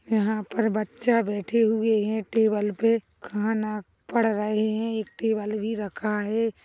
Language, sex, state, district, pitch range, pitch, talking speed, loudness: Hindi, female, Chhattisgarh, Bilaspur, 210-225 Hz, 220 Hz, 155 wpm, -25 LUFS